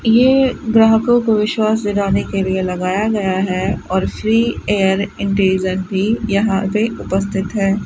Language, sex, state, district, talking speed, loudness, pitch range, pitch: Hindi, female, Rajasthan, Bikaner, 130 wpm, -16 LUFS, 190-220 Hz, 200 Hz